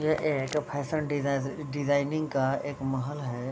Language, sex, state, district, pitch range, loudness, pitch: Hindi, male, Bihar, Vaishali, 135-150 Hz, -30 LUFS, 145 Hz